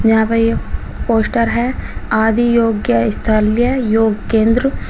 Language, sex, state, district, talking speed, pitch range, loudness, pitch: Hindi, female, Uttar Pradesh, Shamli, 100 wpm, 220-235 Hz, -15 LUFS, 225 Hz